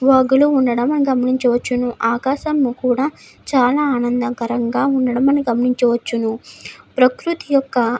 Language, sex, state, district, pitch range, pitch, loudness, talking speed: Telugu, female, Andhra Pradesh, Anantapur, 240-275 Hz, 255 Hz, -17 LUFS, 100 wpm